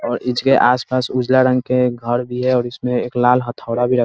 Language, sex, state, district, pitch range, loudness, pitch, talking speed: Hindi, male, Bihar, Muzaffarpur, 120-125 Hz, -17 LUFS, 125 Hz, 250 wpm